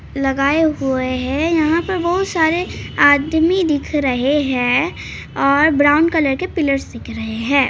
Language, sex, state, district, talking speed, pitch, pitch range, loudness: Hindi, male, Bihar, Araria, 150 wpm, 290 Hz, 270-325 Hz, -16 LUFS